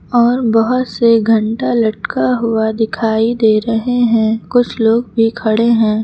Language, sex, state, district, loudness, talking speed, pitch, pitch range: Hindi, female, Uttar Pradesh, Lucknow, -14 LUFS, 150 wpm, 225 Hz, 220-240 Hz